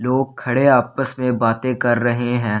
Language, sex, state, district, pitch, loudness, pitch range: Hindi, male, Delhi, New Delhi, 125 Hz, -18 LUFS, 120-130 Hz